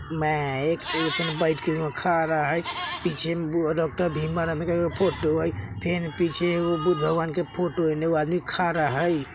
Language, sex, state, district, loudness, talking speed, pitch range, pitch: Bajjika, male, Bihar, Vaishali, -25 LUFS, 130 wpm, 155-175 Hz, 165 Hz